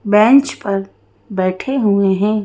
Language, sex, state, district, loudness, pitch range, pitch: Hindi, female, Madhya Pradesh, Bhopal, -15 LUFS, 195-225 Hz, 205 Hz